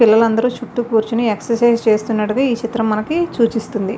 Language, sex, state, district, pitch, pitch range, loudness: Telugu, female, Andhra Pradesh, Visakhapatnam, 230 Hz, 220-240 Hz, -17 LUFS